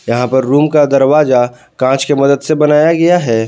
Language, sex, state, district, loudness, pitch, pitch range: Hindi, male, Jharkhand, Palamu, -11 LUFS, 140 Hz, 130-150 Hz